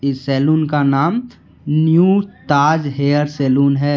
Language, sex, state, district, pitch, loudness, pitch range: Hindi, male, Jharkhand, Deoghar, 145 Hz, -15 LUFS, 140-155 Hz